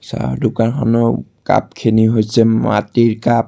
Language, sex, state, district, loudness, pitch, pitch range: Assamese, male, Assam, Sonitpur, -15 LUFS, 115 Hz, 110-115 Hz